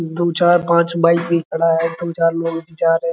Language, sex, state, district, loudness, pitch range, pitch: Hindi, male, Bihar, Araria, -17 LUFS, 165-170 Hz, 165 Hz